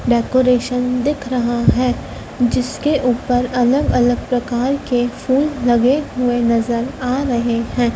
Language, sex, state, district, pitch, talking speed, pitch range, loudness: Hindi, female, Madhya Pradesh, Dhar, 245 Hz, 130 wpm, 235-255 Hz, -17 LUFS